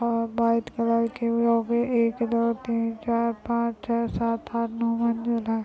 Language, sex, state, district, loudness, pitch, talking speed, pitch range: Hindi, female, Maharashtra, Solapur, -25 LUFS, 230 Hz, 180 wpm, 230-235 Hz